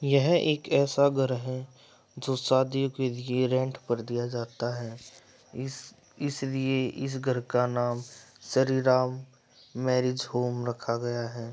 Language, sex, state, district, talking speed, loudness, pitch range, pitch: Hindi, male, Uttar Pradesh, Etah, 140 wpm, -28 LUFS, 120-135 Hz, 130 Hz